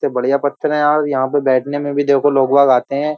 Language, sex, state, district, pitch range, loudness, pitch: Hindi, male, Uttar Pradesh, Jyotiba Phule Nagar, 135-145 Hz, -15 LUFS, 140 Hz